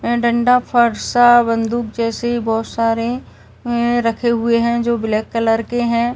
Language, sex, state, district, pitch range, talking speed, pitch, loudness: Hindi, female, Uttar Pradesh, Varanasi, 230-240 Hz, 135 wpm, 235 Hz, -16 LUFS